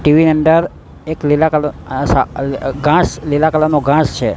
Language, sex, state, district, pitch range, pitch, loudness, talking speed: Gujarati, male, Gujarat, Gandhinagar, 145-160 Hz, 150 Hz, -14 LUFS, 165 wpm